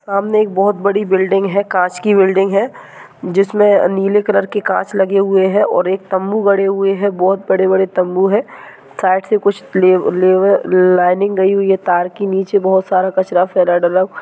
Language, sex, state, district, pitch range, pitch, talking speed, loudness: Hindi, male, Goa, North and South Goa, 185-200 Hz, 195 Hz, 185 wpm, -14 LUFS